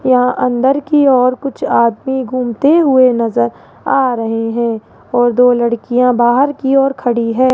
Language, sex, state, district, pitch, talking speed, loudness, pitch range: Hindi, female, Rajasthan, Jaipur, 250 Hz, 160 wpm, -13 LUFS, 235-265 Hz